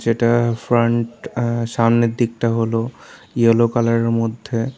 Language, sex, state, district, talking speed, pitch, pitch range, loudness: Bengali, male, Tripura, South Tripura, 115 wpm, 115 Hz, 115-120 Hz, -18 LUFS